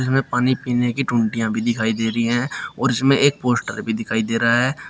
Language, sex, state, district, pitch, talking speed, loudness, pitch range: Hindi, male, Uttar Pradesh, Shamli, 120 Hz, 230 wpm, -20 LUFS, 115-130 Hz